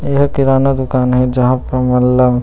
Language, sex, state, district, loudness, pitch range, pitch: Chhattisgarhi, male, Chhattisgarh, Rajnandgaon, -13 LUFS, 125-135 Hz, 130 Hz